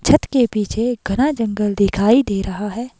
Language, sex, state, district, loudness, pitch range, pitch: Hindi, female, Himachal Pradesh, Shimla, -18 LUFS, 200-240 Hz, 215 Hz